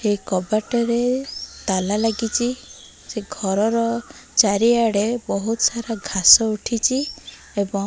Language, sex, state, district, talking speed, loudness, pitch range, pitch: Odia, female, Odisha, Malkangiri, 100 wpm, -20 LUFS, 205-240 Hz, 225 Hz